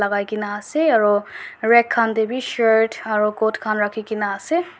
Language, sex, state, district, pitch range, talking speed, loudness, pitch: Nagamese, female, Nagaland, Dimapur, 210-235 Hz, 190 wpm, -19 LUFS, 220 Hz